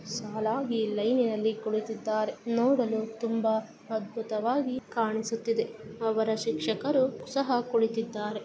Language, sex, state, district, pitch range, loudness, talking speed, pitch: Kannada, female, Karnataka, Bijapur, 220-235 Hz, -29 LUFS, 85 wpm, 225 Hz